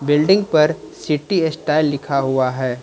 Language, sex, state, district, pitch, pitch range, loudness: Hindi, male, Jharkhand, Ranchi, 150 Hz, 135-155 Hz, -18 LUFS